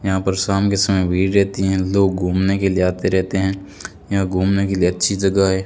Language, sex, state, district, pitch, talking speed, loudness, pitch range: Hindi, male, Rajasthan, Bikaner, 95 Hz, 235 wpm, -18 LUFS, 95-100 Hz